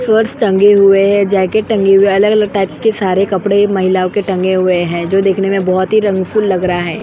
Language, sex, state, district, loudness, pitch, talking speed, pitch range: Hindi, female, Goa, North and South Goa, -12 LUFS, 195 Hz, 250 wpm, 185-205 Hz